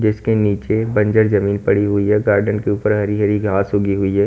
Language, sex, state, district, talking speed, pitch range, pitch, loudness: Hindi, male, Haryana, Charkhi Dadri, 225 wpm, 100-105 Hz, 105 Hz, -17 LUFS